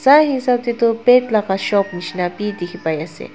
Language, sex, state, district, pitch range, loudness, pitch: Nagamese, female, Nagaland, Dimapur, 180-245 Hz, -17 LUFS, 210 Hz